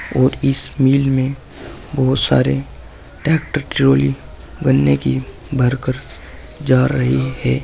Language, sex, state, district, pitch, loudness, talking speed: Hindi, male, Uttar Pradesh, Saharanpur, 125 Hz, -17 LUFS, 120 wpm